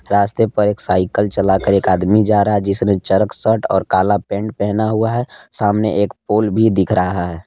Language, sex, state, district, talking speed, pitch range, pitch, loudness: Hindi, male, Jharkhand, Palamu, 210 wpm, 95-110 Hz, 100 Hz, -16 LUFS